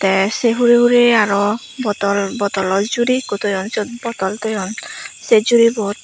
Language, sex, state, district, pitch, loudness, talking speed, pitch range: Chakma, female, Tripura, West Tripura, 215 Hz, -16 LUFS, 150 wpm, 200-235 Hz